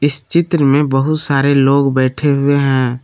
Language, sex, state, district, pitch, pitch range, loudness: Hindi, male, Jharkhand, Palamu, 140 Hz, 135-145 Hz, -13 LUFS